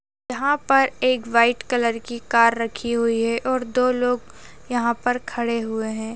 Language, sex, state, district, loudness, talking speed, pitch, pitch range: Hindi, female, Uttarakhand, Tehri Garhwal, -21 LUFS, 175 wpm, 235 Hz, 230-250 Hz